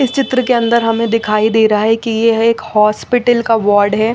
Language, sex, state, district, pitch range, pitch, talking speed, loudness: Hindi, female, Chandigarh, Chandigarh, 215-235 Hz, 225 Hz, 215 wpm, -13 LUFS